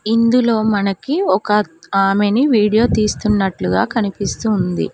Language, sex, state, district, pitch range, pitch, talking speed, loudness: Telugu, female, Telangana, Mahabubabad, 200-225 Hz, 210 Hz, 85 wpm, -16 LUFS